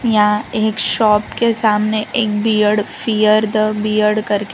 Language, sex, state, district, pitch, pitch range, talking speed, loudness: Hindi, female, Gujarat, Valsad, 215 Hz, 210-220 Hz, 145 wpm, -15 LUFS